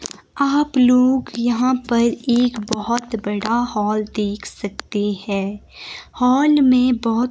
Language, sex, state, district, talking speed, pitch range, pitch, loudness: Hindi, female, Himachal Pradesh, Shimla, 115 wpm, 210-250 Hz, 235 Hz, -18 LUFS